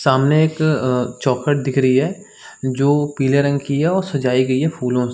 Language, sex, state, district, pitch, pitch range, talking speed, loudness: Hindi, male, Chhattisgarh, Sarguja, 140 Hz, 130-150 Hz, 210 wpm, -18 LUFS